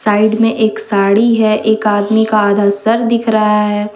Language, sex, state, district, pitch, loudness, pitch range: Hindi, female, Jharkhand, Deoghar, 215 Hz, -12 LUFS, 210-220 Hz